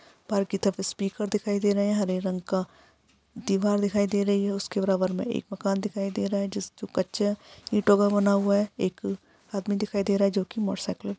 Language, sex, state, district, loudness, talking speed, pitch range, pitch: Hindi, female, Bihar, Gaya, -27 LUFS, 230 wpm, 195-205 Hz, 200 Hz